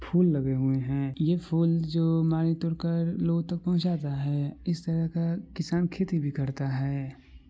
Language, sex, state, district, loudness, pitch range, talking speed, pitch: Maithili, male, Bihar, Supaul, -28 LUFS, 140-170 Hz, 170 wpm, 165 Hz